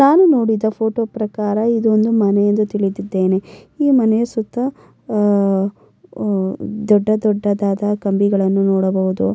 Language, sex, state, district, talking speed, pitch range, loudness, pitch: Kannada, female, Karnataka, Mysore, 75 wpm, 200-220 Hz, -17 LUFS, 210 Hz